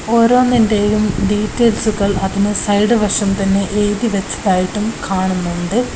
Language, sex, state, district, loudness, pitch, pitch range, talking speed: Malayalam, female, Kerala, Kozhikode, -15 LUFS, 205 Hz, 195-220 Hz, 80 wpm